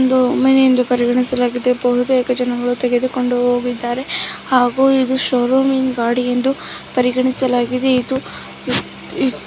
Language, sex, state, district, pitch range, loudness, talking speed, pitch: Kannada, female, Karnataka, Shimoga, 245-260 Hz, -16 LUFS, 110 wpm, 250 Hz